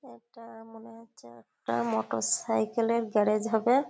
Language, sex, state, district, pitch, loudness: Bengali, female, West Bengal, Kolkata, 220 Hz, -28 LUFS